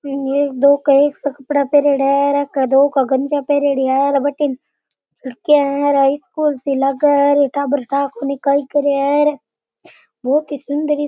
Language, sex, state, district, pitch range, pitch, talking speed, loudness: Rajasthani, male, Rajasthan, Churu, 275-290 Hz, 280 Hz, 200 wpm, -16 LUFS